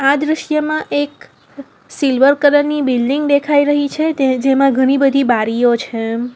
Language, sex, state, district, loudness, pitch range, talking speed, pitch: Gujarati, female, Gujarat, Valsad, -14 LUFS, 260-290 Hz, 150 wpm, 275 Hz